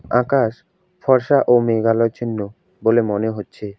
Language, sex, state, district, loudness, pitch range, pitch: Bengali, male, West Bengal, Alipurduar, -18 LUFS, 110-125 Hz, 115 Hz